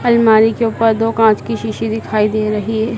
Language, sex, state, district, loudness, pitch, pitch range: Hindi, male, Madhya Pradesh, Dhar, -14 LUFS, 220 Hz, 220-225 Hz